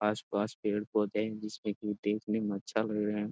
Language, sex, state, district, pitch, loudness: Hindi, male, Bihar, Jamui, 105 Hz, -34 LUFS